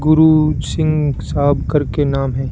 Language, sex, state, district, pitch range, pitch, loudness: Hindi, male, Rajasthan, Bikaner, 135-155 Hz, 145 Hz, -16 LUFS